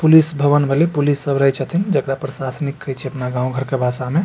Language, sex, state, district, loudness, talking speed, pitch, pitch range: Maithili, male, Bihar, Supaul, -18 LUFS, 240 wpm, 140 Hz, 135-150 Hz